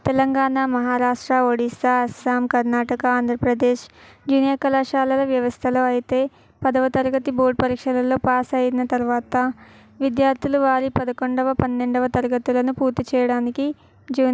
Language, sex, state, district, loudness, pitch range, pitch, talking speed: Telugu, female, Telangana, Karimnagar, -20 LUFS, 250-265 Hz, 255 Hz, 95 wpm